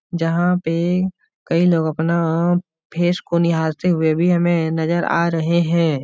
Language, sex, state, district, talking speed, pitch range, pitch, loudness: Hindi, male, Uttar Pradesh, Etah, 150 wpm, 165-175 Hz, 170 Hz, -18 LUFS